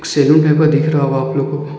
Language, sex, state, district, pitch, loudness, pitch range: Hindi, male, Uttar Pradesh, Ghazipur, 145 Hz, -14 LUFS, 140-150 Hz